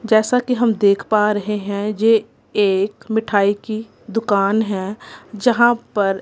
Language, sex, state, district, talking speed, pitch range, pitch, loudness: Hindi, female, Punjab, Kapurthala, 145 wpm, 200-225 Hz, 210 Hz, -18 LUFS